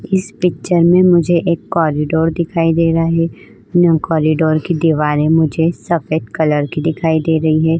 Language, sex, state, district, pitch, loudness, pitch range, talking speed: Hindi, female, Uttar Pradesh, Budaun, 165 Hz, -14 LUFS, 160-170 Hz, 170 wpm